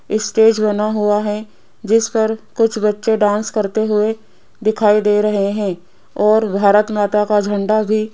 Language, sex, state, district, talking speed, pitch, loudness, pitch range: Hindi, female, Rajasthan, Jaipur, 160 wpm, 210 Hz, -16 LUFS, 210-220 Hz